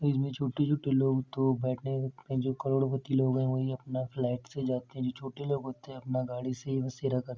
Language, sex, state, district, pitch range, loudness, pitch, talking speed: Hindi, male, Uttar Pradesh, Etah, 130-135 Hz, -32 LUFS, 130 Hz, 235 wpm